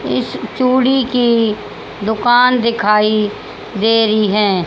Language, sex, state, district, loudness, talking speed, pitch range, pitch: Hindi, female, Haryana, Charkhi Dadri, -14 LUFS, 105 wpm, 210-245 Hz, 225 Hz